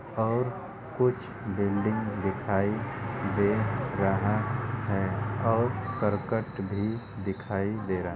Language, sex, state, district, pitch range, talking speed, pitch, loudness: Hindi, male, Uttar Pradesh, Ghazipur, 100-115 Hz, 105 wpm, 110 Hz, -29 LUFS